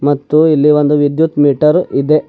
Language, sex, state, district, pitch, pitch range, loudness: Kannada, male, Karnataka, Bidar, 150 Hz, 145-155 Hz, -11 LUFS